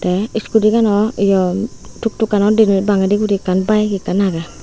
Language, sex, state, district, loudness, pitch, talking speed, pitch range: Chakma, female, Tripura, Unakoti, -15 LUFS, 205 Hz, 170 wpm, 195-215 Hz